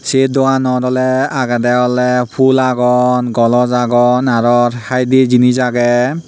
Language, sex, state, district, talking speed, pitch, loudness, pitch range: Chakma, male, Tripura, Unakoti, 125 wpm, 125 Hz, -12 LUFS, 120-130 Hz